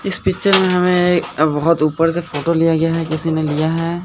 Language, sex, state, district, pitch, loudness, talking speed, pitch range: Hindi, male, Bihar, Katihar, 165 Hz, -16 LUFS, 225 wpm, 160-175 Hz